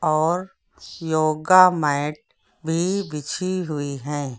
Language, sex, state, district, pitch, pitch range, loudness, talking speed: Hindi, male, Uttar Pradesh, Lucknow, 155 Hz, 145-180 Hz, -21 LUFS, 95 wpm